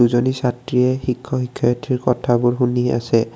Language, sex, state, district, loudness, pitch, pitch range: Assamese, male, Assam, Kamrup Metropolitan, -19 LUFS, 125 Hz, 120-125 Hz